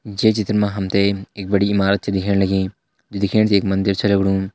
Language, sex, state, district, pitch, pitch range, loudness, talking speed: Hindi, male, Uttarakhand, Tehri Garhwal, 100 Hz, 95-100 Hz, -18 LUFS, 235 wpm